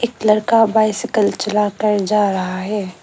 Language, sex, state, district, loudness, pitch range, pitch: Hindi, female, Arunachal Pradesh, Lower Dibang Valley, -17 LUFS, 200-220 Hz, 210 Hz